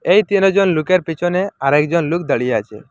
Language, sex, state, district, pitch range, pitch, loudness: Bengali, male, Assam, Hailakandi, 145-185 Hz, 170 Hz, -16 LUFS